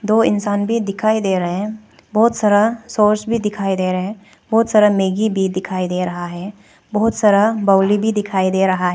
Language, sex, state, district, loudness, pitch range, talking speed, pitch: Hindi, female, Arunachal Pradesh, Papum Pare, -17 LUFS, 190-215 Hz, 200 wpm, 205 Hz